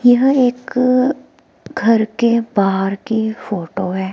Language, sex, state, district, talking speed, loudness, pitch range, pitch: Hindi, female, Himachal Pradesh, Shimla, 115 wpm, -16 LUFS, 195-255 Hz, 230 Hz